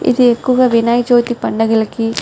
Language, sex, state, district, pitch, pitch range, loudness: Telugu, female, Telangana, Nalgonda, 240 Hz, 225-245 Hz, -13 LUFS